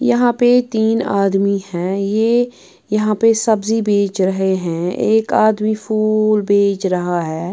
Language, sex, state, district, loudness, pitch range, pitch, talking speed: Hindi, female, Bihar, Patna, -16 LUFS, 195-225 Hz, 215 Hz, 145 wpm